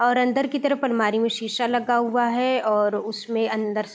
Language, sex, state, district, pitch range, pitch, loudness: Hindi, female, Bihar, Vaishali, 220-245 Hz, 235 Hz, -22 LUFS